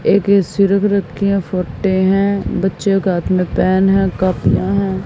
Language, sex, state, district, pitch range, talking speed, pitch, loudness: Hindi, female, Haryana, Jhajjar, 185-200 Hz, 180 wpm, 195 Hz, -15 LUFS